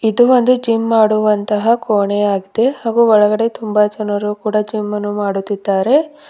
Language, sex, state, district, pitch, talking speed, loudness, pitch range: Kannada, female, Karnataka, Bidar, 215 Hz, 135 wpm, -15 LUFS, 205-230 Hz